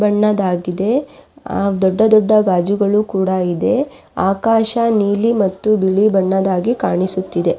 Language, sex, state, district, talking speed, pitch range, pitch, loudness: Kannada, female, Karnataka, Raichur, 95 wpm, 190-220 Hz, 200 Hz, -16 LUFS